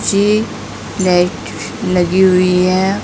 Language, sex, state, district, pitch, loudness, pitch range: Hindi, female, Uttar Pradesh, Saharanpur, 185 Hz, -14 LUFS, 180-200 Hz